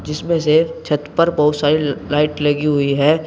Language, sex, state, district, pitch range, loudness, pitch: Hindi, male, Uttar Pradesh, Saharanpur, 150-160 Hz, -17 LUFS, 150 Hz